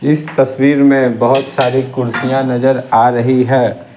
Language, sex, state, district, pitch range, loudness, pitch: Hindi, male, Bihar, Patna, 125-135 Hz, -12 LUFS, 130 Hz